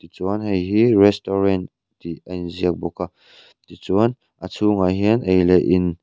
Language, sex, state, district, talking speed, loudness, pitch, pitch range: Mizo, male, Mizoram, Aizawl, 160 wpm, -19 LUFS, 95 Hz, 90-100 Hz